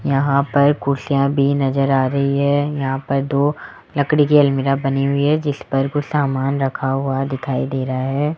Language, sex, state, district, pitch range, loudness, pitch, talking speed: Hindi, male, Rajasthan, Jaipur, 135-145 Hz, -18 LUFS, 140 Hz, 195 wpm